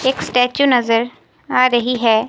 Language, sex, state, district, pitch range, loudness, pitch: Hindi, female, Himachal Pradesh, Shimla, 235-255 Hz, -15 LUFS, 245 Hz